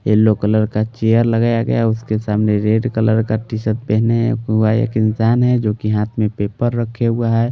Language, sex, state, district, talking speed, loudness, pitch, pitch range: Hindi, male, Delhi, New Delhi, 190 wpm, -17 LUFS, 110 Hz, 110-115 Hz